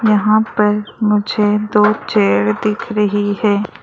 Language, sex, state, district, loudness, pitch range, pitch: Hindi, female, Arunachal Pradesh, Lower Dibang Valley, -15 LUFS, 205-215 Hz, 210 Hz